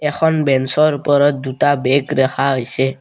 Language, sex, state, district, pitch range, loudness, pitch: Assamese, male, Assam, Kamrup Metropolitan, 130-145 Hz, -15 LUFS, 140 Hz